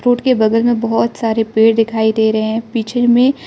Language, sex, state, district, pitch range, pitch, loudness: Hindi, female, Arunachal Pradesh, Lower Dibang Valley, 220-240 Hz, 225 Hz, -14 LUFS